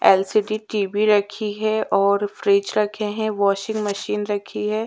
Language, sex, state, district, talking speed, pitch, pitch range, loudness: Hindi, female, Haryana, Charkhi Dadri, 160 wpm, 210 Hz, 205-215 Hz, -21 LUFS